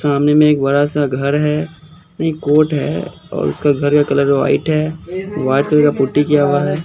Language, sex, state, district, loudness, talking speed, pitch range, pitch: Hindi, male, Bihar, Katihar, -15 LUFS, 200 wpm, 145-155 Hz, 145 Hz